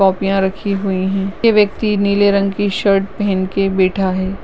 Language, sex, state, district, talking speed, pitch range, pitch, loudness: Hindi, female, Uttarakhand, Uttarkashi, 190 wpm, 190-200 Hz, 195 Hz, -16 LUFS